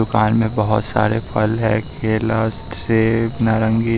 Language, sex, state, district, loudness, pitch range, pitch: Hindi, male, Bihar, West Champaran, -18 LUFS, 110-115 Hz, 110 Hz